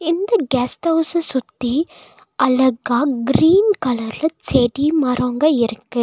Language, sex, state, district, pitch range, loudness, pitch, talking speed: Tamil, female, Tamil Nadu, Nilgiris, 250-325 Hz, -17 LUFS, 270 Hz, 100 wpm